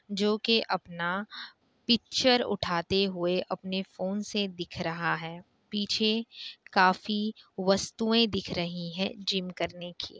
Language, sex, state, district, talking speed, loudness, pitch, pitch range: Hindi, female, Bihar, Kishanganj, 125 wpm, -29 LUFS, 195 Hz, 175-215 Hz